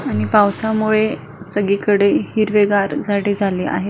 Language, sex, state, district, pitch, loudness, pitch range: Marathi, female, Maharashtra, Pune, 205 Hz, -17 LUFS, 200-215 Hz